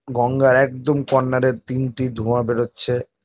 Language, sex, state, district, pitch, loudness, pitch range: Bengali, male, West Bengal, North 24 Parganas, 130 Hz, -19 LUFS, 120-130 Hz